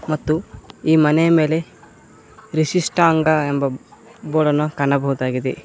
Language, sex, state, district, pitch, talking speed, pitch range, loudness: Kannada, male, Karnataka, Koppal, 155 Hz, 95 wpm, 140-160 Hz, -18 LUFS